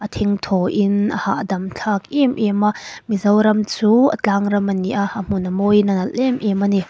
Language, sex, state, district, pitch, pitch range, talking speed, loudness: Mizo, female, Mizoram, Aizawl, 205 Hz, 195-215 Hz, 210 wpm, -18 LUFS